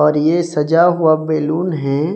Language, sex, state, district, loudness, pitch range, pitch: Hindi, male, Odisha, Sambalpur, -15 LUFS, 150-170 Hz, 155 Hz